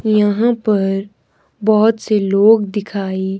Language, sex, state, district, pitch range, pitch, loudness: Hindi, male, Himachal Pradesh, Shimla, 195-220 Hz, 210 Hz, -15 LUFS